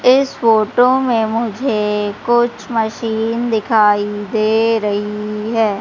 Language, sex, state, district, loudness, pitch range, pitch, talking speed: Hindi, female, Madhya Pradesh, Umaria, -16 LUFS, 210-235 Hz, 220 Hz, 105 wpm